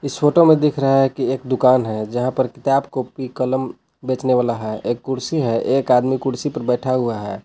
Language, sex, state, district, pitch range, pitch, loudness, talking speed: Hindi, male, Jharkhand, Palamu, 125-135 Hz, 130 Hz, -19 LUFS, 225 wpm